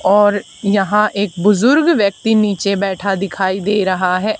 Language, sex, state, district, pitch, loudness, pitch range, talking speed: Hindi, female, Haryana, Charkhi Dadri, 200 Hz, -15 LUFS, 195-210 Hz, 150 wpm